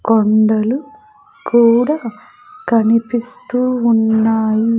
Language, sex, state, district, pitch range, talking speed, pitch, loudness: Telugu, female, Andhra Pradesh, Sri Satya Sai, 220-250 Hz, 65 wpm, 230 Hz, -15 LUFS